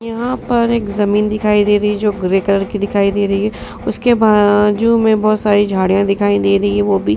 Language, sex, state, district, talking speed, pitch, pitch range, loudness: Hindi, female, Uttar Pradesh, Varanasi, 235 wpm, 205 Hz, 200-215 Hz, -14 LUFS